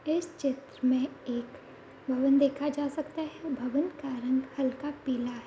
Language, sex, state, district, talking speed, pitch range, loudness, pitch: Hindi, female, Bihar, Kishanganj, 185 wpm, 255-295 Hz, -31 LUFS, 275 Hz